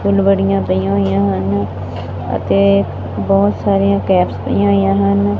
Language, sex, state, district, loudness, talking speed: Punjabi, female, Punjab, Fazilka, -15 LUFS, 135 wpm